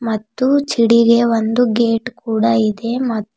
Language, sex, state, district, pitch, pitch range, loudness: Kannada, female, Karnataka, Bidar, 230 Hz, 225-240 Hz, -15 LUFS